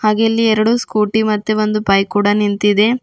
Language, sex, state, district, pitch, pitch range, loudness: Kannada, female, Karnataka, Bidar, 215 Hz, 205-220 Hz, -15 LUFS